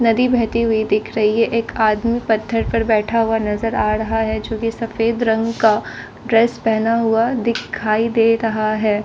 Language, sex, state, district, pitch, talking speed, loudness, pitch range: Hindi, female, Delhi, New Delhi, 225 Hz, 180 wpm, -18 LUFS, 220-230 Hz